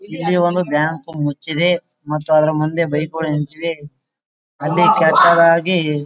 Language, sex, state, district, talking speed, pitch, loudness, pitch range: Kannada, male, Karnataka, Gulbarga, 130 wpm, 160 Hz, -16 LUFS, 150-170 Hz